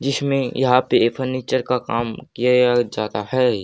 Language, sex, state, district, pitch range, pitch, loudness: Hindi, male, Haryana, Jhajjar, 120-130 Hz, 125 Hz, -19 LUFS